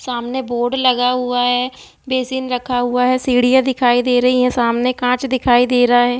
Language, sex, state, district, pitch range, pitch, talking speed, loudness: Hindi, female, Bihar, East Champaran, 245-255 Hz, 250 Hz, 205 wpm, -16 LUFS